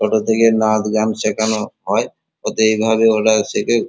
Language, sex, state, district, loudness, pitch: Bengali, male, West Bengal, Kolkata, -16 LUFS, 110 Hz